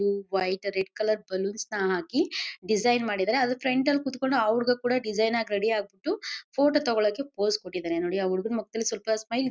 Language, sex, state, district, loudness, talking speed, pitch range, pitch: Kannada, female, Karnataka, Mysore, -27 LUFS, 215 wpm, 200-250 Hz, 220 Hz